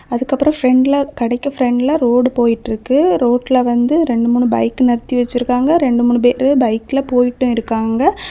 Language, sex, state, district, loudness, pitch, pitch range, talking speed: Tamil, female, Tamil Nadu, Kanyakumari, -14 LUFS, 250 Hz, 240-275 Hz, 145 wpm